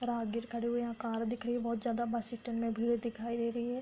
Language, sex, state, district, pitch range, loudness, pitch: Hindi, female, Bihar, Darbhanga, 230-240 Hz, -36 LUFS, 235 Hz